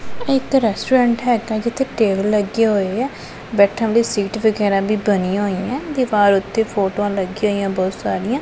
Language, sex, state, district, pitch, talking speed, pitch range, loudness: Punjabi, female, Punjab, Pathankot, 215 Hz, 185 wpm, 200-235 Hz, -18 LUFS